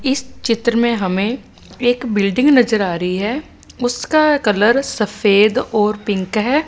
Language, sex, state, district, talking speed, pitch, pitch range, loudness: Hindi, female, Punjab, Fazilka, 145 wpm, 230 Hz, 210-255 Hz, -16 LUFS